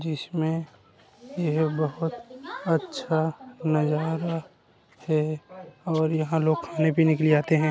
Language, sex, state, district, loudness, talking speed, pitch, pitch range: Hindi, male, Uttar Pradesh, Hamirpur, -26 LUFS, 115 wpm, 160 Hz, 155-165 Hz